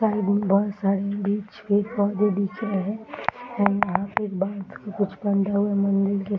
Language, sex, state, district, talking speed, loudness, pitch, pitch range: Hindi, female, Bihar, Muzaffarpur, 150 wpm, -24 LUFS, 200 Hz, 195-205 Hz